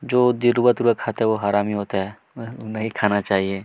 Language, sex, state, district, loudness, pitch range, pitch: Hindi, male, Chhattisgarh, Kabirdham, -21 LUFS, 100-120 Hz, 110 Hz